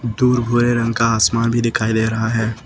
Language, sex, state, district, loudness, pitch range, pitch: Hindi, male, Uttar Pradesh, Lucknow, -17 LUFS, 110-120 Hz, 115 Hz